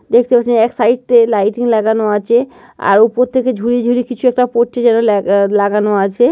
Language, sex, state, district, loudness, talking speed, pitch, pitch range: Bengali, female, West Bengal, Jhargram, -13 LUFS, 180 wpm, 235 Hz, 210-245 Hz